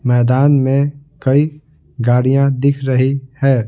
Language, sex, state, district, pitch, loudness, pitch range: Hindi, male, Bihar, Patna, 135 Hz, -15 LUFS, 130-140 Hz